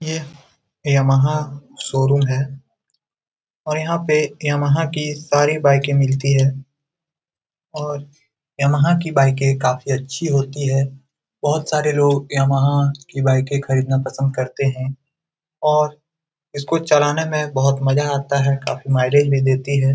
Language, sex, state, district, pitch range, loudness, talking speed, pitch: Hindi, male, Bihar, Jamui, 135-150 Hz, -18 LUFS, 140 wpm, 140 Hz